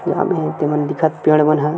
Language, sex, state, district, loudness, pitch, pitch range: Chhattisgarhi, male, Chhattisgarh, Sukma, -17 LUFS, 155 Hz, 150-155 Hz